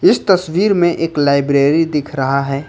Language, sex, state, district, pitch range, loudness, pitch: Hindi, male, Jharkhand, Ranchi, 140-175 Hz, -14 LUFS, 150 Hz